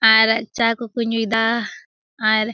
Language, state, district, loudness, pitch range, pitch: Surjapuri, Bihar, Kishanganj, -19 LUFS, 220-230 Hz, 225 Hz